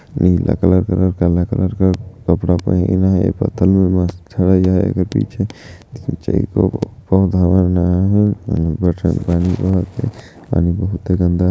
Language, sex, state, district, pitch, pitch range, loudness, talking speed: Chhattisgarhi, male, Chhattisgarh, Jashpur, 90 Hz, 90-95 Hz, -16 LUFS, 70 wpm